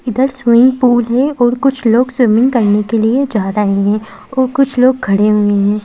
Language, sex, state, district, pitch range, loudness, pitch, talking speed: Hindi, female, Madhya Pradesh, Bhopal, 210-255 Hz, -12 LUFS, 240 Hz, 205 wpm